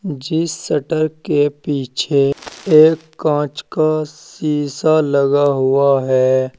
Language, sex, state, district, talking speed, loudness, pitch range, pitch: Hindi, male, Uttar Pradesh, Saharanpur, 100 wpm, -16 LUFS, 140-155 Hz, 145 Hz